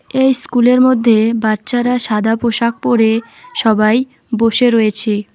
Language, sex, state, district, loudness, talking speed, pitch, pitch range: Bengali, female, West Bengal, Alipurduar, -13 LUFS, 110 wpm, 235 Hz, 220-245 Hz